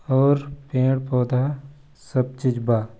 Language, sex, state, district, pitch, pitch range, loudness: Hindi, male, Chhattisgarh, Balrampur, 130 Hz, 125-140 Hz, -22 LUFS